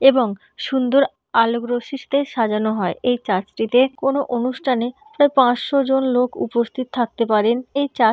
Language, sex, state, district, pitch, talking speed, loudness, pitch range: Bengali, female, West Bengal, North 24 Parganas, 250 Hz, 160 wpm, -19 LUFS, 230-270 Hz